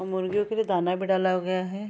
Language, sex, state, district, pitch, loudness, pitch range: Hindi, female, Bihar, Araria, 185 Hz, -26 LUFS, 185-200 Hz